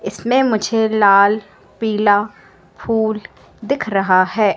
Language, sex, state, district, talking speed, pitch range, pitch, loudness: Hindi, female, Madhya Pradesh, Katni, 105 wpm, 200-225 Hz, 210 Hz, -16 LUFS